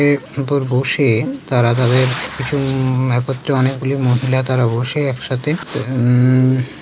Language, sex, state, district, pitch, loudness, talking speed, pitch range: Bengali, male, West Bengal, Kolkata, 130 Hz, -16 LUFS, 115 wpm, 125-135 Hz